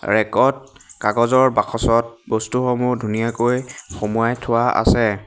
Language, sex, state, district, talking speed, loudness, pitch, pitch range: Assamese, male, Assam, Hailakandi, 100 wpm, -19 LUFS, 115 Hz, 110-125 Hz